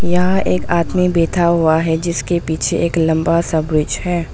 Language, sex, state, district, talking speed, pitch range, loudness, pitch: Hindi, female, Arunachal Pradesh, Longding, 180 wpm, 160-175 Hz, -16 LUFS, 170 Hz